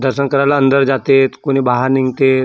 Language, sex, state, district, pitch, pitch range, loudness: Marathi, male, Maharashtra, Gondia, 135 Hz, 130-140 Hz, -13 LUFS